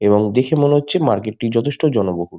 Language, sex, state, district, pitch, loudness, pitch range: Bengali, male, West Bengal, Malda, 120 Hz, -17 LUFS, 105-145 Hz